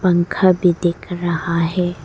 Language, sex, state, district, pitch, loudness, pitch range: Hindi, female, Arunachal Pradesh, Lower Dibang Valley, 175 Hz, -18 LUFS, 170-180 Hz